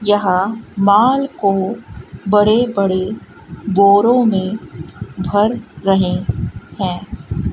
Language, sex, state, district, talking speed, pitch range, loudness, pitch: Hindi, male, Rajasthan, Bikaner, 80 wpm, 185-215 Hz, -16 LUFS, 200 Hz